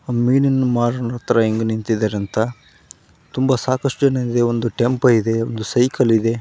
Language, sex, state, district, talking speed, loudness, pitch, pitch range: Kannada, male, Karnataka, Gulbarga, 150 wpm, -18 LUFS, 120 Hz, 110-125 Hz